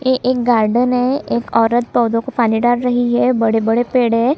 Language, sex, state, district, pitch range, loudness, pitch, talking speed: Hindi, female, Chhattisgarh, Kabirdham, 230-250 Hz, -15 LUFS, 240 Hz, 205 wpm